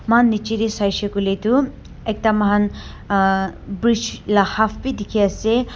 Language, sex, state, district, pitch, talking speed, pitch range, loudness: Nagamese, female, Nagaland, Dimapur, 210 Hz, 145 wpm, 200-225 Hz, -19 LUFS